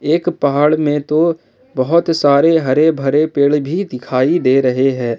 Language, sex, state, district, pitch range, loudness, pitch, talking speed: Hindi, male, Jharkhand, Ranchi, 130-160 Hz, -14 LUFS, 145 Hz, 160 wpm